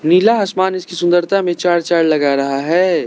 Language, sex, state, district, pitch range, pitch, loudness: Hindi, male, Arunachal Pradesh, Lower Dibang Valley, 165-185 Hz, 175 Hz, -15 LUFS